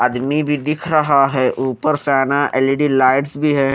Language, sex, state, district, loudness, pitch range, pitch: Hindi, male, Haryana, Rohtak, -16 LUFS, 135-150 Hz, 140 Hz